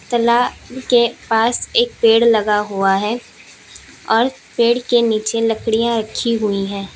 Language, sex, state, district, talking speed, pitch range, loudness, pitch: Hindi, female, Uttar Pradesh, Lalitpur, 140 wpm, 215-240 Hz, -16 LUFS, 230 Hz